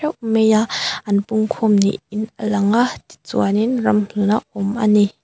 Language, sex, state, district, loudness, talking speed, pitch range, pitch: Mizo, female, Mizoram, Aizawl, -18 LUFS, 160 wpm, 205-220 Hz, 215 Hz